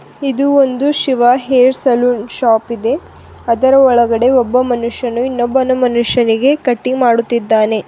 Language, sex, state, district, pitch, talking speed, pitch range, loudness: Kannada, female, Karnataka, Bidar, 250 Hz, 115 wpm, 235-260 Hz, -13 LUFS